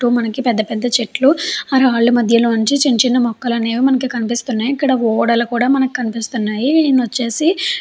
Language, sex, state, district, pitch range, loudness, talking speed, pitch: Telugu, female, Andhra Pradesh, Chittoor, 235-265 Hz, -15 LUFS, 185 wpm, 245 Hz